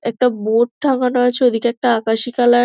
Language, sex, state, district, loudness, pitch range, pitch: Bengali, female, West Bengal, Dakshin Dinajpur, -16 LUFS, 235-250 Hz, 245 Hz